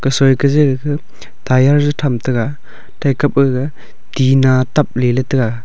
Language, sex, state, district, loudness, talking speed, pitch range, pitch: Wancho, male, Arunachal Pradesh, Longding, -14 LUFS, 150 wpm, 130-145 Hz, 135 Hz